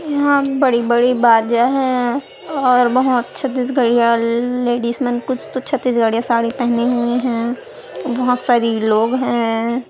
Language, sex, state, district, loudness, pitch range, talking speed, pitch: Hindi, female, Chhattisgarh, Raipur, -16 LUFS, 235-255 Hz, 145 wpm, 245 Hz